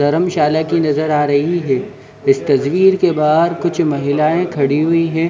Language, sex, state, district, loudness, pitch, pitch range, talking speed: Hindi, male, Jharkhand, Sahebganj, -15 LUFS, 155 Hz, 145-170 Hz, 170 wpm